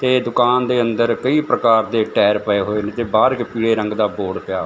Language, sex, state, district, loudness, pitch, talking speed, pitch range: Punjabi, male, Punjab, Fazilka, -17 LUFS, 115 Hz, 260 wpm, 105-120 Hz